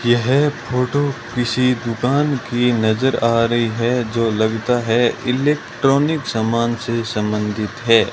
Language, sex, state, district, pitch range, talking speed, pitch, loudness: Hindi, male, Rajasthan, Bikaner, 115-130 Hz, 125 wpm, 120 Hz, -18 LUFS